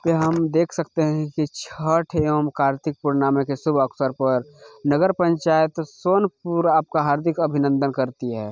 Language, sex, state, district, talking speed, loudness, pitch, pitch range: Hindi, male, Chhattisgarh, Bilaspur, 155 wpm, -21 LUFS, 155 Hz, 140-165 Hz